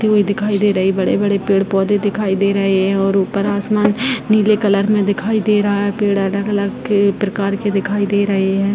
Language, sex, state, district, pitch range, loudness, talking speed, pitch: Hindi, female, Bihar, Purnia, 195-205 Hz, -16 LUFS, 190 wpm, 200 Hz